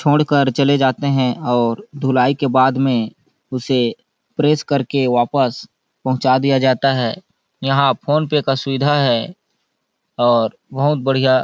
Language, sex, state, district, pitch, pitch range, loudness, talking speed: Hindi, male, Chhattisgarh, Balrampur, 135 Hz, 130-140 Hz, -17 LUFS, 150 wpm